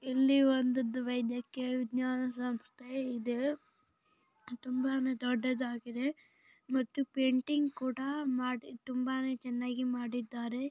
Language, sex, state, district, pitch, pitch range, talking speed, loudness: Kannada, female, Karnataka, Gulbarga, 255 Hz, 245-265 Hz, 65 wpm, -34 LUFS